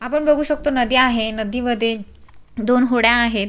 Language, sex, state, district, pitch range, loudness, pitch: Marathi, female, Maharashtra, Sindhudurg, 230-255 Hz, -18 LUFS, 245 Hz